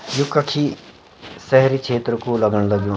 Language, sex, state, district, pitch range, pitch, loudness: Garhwali, male, Uttarakhand, Uttarkashi, 110-140 Hz, 120 Hz, -19 LUFS